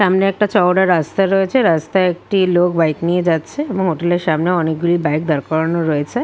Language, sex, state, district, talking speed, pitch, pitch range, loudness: Bengali, female, West Bengal, Kolkata, 210 wpm, 175 Hz, 160-190 Hz, -16 LUFS